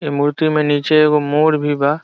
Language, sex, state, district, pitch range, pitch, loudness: Bhojpuri, male, Bihar, Saran, 145-155 Hz, 150 Hz, -15 LUFS